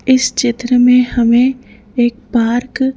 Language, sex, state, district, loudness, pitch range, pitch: Hindi, female, Madhya Pradesh, Bhopal, -13 LUFS, 240-255 Hz, 245 Hz